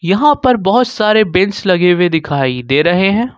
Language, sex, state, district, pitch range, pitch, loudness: Hindi, male, Jharkhand, Ranchi, 175-220 Hz, 195 Hz, -12 LUFS